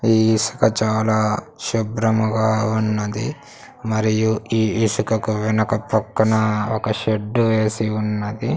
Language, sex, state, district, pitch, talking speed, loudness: Telugu, male, Andhra Pradesh, Sri Satya Sai, 110 Hz, 100 wpm, -20 LUFS